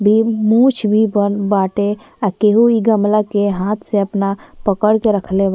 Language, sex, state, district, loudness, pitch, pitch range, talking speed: Bhojpuri, female, Uttar Pradesh, Ghazipur, -15 LUFS, 210 Hz, 200-215 Hz, 185 wpm